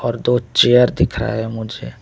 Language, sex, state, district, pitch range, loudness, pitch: Hindi, male, Tripura, West Tripura, 110-125 Hz, -16 LUFS, 120 Hz